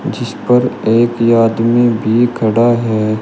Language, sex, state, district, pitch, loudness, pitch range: Hindi, male, Uttar Pradesh, Shamli, 115 Hz, -13 LUFS, 110-120 Hz